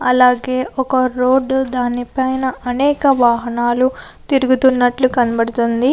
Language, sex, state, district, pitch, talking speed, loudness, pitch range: Telugu, female, Andhra Pradesh, Anantapur, 255 Hz, 90 wpm, -16 LUFS, 245-265 Hz